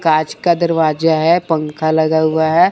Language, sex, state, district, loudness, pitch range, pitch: Hindi, male, Chandigarh, Chandigarh, -15 LUFS, 155-165 Hz, 160 Hz